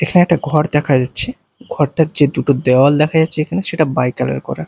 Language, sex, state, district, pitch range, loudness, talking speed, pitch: Bengali, male, Bihar, Katihar, 130-160 Hz, -15 LUFS, 205 wpm, 150 Hz